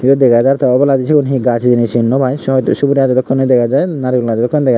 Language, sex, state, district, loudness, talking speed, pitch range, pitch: Chakma, male, Tripura, Unakoti, -12 LUFS, 265 wpm, 125-135 Hz, 130 Hz